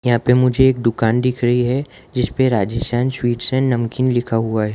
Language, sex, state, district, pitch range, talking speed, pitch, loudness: Hindi, male, Gujarat, Valsad, 115-130 Hz, 200 wpm, 125 Hz, -17 LUFS